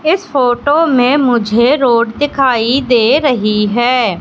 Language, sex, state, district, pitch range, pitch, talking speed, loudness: Hindi, female, Madhya Pradesh, Katni, 235-280 Hz, 250 Hz, 130 wpm, -12 LUFS